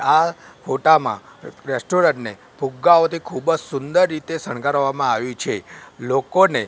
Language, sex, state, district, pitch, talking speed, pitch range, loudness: Gujarati, male, Gujarat, Gandhinagar, 155 Hz, 135 wpm, 135-165 Hz, -19 LUFS